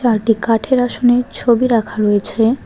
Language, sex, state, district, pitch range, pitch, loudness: Bengali, female, West Bengal, Alipurduar, 220-245 Hz, 230 Hz, -15 LUFS